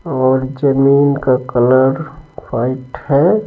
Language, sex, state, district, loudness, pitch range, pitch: Hindi, male, Bihar, Patna, -14 LUFS, 130-145 Hz, 135 Hz